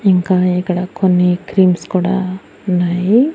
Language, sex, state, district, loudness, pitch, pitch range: Telugu, female, Andhra Pradesh, Annamaya, -15 LUFS, 185 Hz, 180-190 Hz